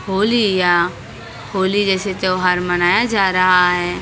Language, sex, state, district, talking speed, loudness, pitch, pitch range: Hindi, female, Maharashtra, Mumbai Suburban, 150 wpm, -16 LUFS, 185 Hz, 175-195 Hz